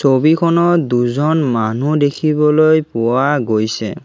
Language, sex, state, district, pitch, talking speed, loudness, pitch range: Assamese, male, Assam, Kamrup Metropolitan, 145 Hz, 90 wpm, -14 LUFS, 120-155 Hz